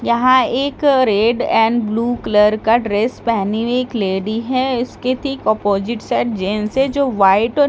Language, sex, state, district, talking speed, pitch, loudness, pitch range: Hindi, female, Delhi, New Delhi, 170 wpm, 230 Hz, -16 LUFS, 215-255 Hz